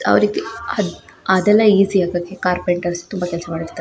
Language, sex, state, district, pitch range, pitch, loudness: Kannada, female, Karnataka, Shimoga, 175-190 Hz, 180 Hz, -18 LUFS